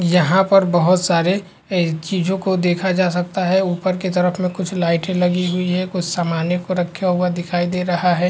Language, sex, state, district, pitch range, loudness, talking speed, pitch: Hindi, male, Uttar Pradesh, Varanasi, 175-185 Hz, -18 LUFS, 200 wpm, 180 Hz